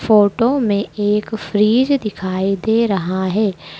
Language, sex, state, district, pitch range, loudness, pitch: Hindi, female, Madhya Pradesh, Dhar, 195-220 Hz, -17 LUFS, 210 Hz